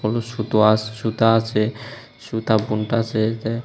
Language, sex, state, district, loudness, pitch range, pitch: Bengali, male, Tripura, West Tripura, -20 LUFS, 110-115 Hz, 110 Hz